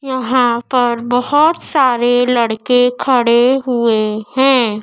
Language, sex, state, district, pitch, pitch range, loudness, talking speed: Hindi, female, Madhya Pradesh, Dhar, 245 Hz, 235-260 Hz, -13 LUFS, 100 wpm